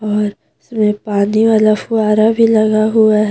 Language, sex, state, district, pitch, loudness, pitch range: Hindi, female, Jharkhand, Deoghar, 215 Hz, -13 LUFS, 210-220 Hz